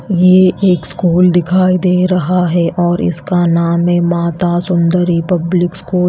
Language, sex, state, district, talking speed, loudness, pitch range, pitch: Hindi, female, Chhattisgarh, Raipur, 155 wpm, -12 LUFS, 175-180 Hz, 175 Hz